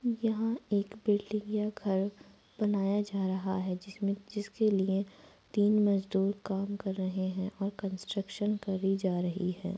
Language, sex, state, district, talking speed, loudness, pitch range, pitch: Hindi, female, Bihar, Araria, 145 wpm, -32 LUFS, 190-210 Hz, 200 Hz